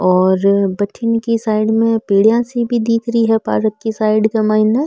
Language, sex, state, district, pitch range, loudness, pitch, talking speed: Marwari, female, Rajasthan, Nagaur, 215-230 Hz, -15 LUFS, 220 Hz, 170 wpm